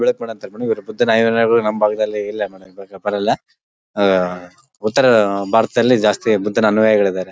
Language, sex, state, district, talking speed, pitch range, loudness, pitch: Kannada, male, Karnataka, Bellary, 115 wpm, 100-115 Hz, -17 LUFS, 105 Hz